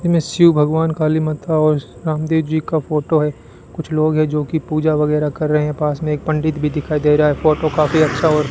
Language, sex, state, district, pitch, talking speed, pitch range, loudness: Hindi, male, Rajasthan, Bikaner, 155 Hz, 245 wpm, 150-155 Hz, -17 LUFS